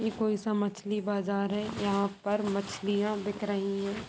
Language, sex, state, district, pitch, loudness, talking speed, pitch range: Hindi, female, Bihar, Sitamarhi, 205 Hz, -31 LUFS, 160 wpm, 200-210 Hz